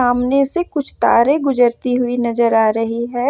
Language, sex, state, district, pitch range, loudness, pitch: Hindi, female, Jharkhand, Ranchi, 235-275 Hz, -16 LUFS, 245 Hz